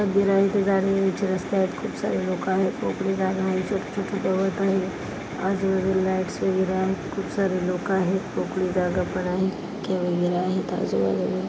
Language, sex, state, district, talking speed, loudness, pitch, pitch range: Marathi, female, Maharashtra, Dhule, 140 wpm, -24 LUFS, 190 Hz, 185-195 Hz